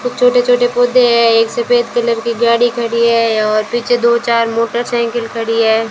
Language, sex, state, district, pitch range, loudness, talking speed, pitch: Hindi, female, Rajasthan, Jaisalmer, 230-240 Hz, -13 LUFS, 180 wpm, 235 Hz